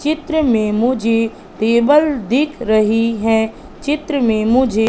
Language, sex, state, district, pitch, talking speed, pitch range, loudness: Hindi, female, Madhya Pradesh, Katni, 235 Hz, 125 wpm, 220-290 Hz, -16 LUFS